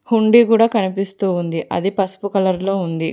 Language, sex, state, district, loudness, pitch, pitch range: Telugu, female, Telangana, Hyderabad, -17 LUFS, 195 Hz, 180-215 Hz